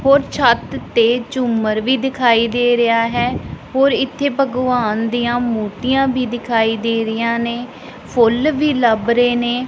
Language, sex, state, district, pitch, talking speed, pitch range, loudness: Punjabi, female, Punjab, Pathankot, 240 Hz, 150 wpm, 230-260 Hz, -16 LUFS